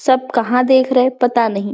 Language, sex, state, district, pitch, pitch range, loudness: Hindi, female, Chhattisgarh, Balrampur, 250 Hz, 235-260 Hz, -15 LUFS